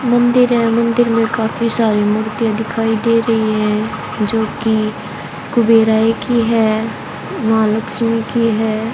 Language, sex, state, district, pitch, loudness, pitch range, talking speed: Hindi, female, Haryana, Jhajjar, 225 Hz, -15 LUFS, 220-230 Hz, 125 wpm